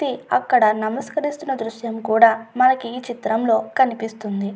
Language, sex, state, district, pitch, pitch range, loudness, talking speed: Telugu, female, Andhra Pradesh, Guntur, 230 Hz, 220-255 Hz, -20 LUFS, 120 wpm